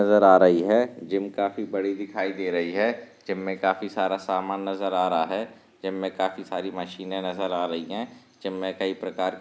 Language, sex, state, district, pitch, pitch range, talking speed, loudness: Hindi, male, Maharashtra, Sindhudurg, 95 Hz, 95-100 Hz, 215 wpm, -25 LUFS